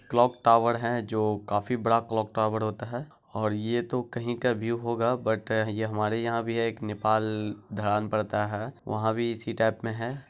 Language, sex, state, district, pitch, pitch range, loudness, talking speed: Hindi, male, Bihar, Araria, 110 Hz, 110-120 Hz, -28 LUFS, 205 wpm